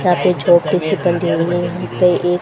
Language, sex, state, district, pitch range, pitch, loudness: Hindi, female, Haryana, Charkhi Dadri, 175-180 Hz, 175 Hz, -16 LUFS